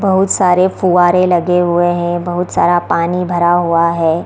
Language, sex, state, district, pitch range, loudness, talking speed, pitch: Hindi, female, Bihar, East Champaran, 175-180 Hz, -13 LUFS, 170 wpm, 175 Hz